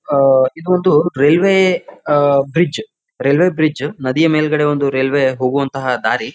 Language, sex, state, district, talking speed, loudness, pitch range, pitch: Kannada, male, Karnataka, Bijapur, 120 wpm, -15 LUFS, 135-160 Hz, 145 Hz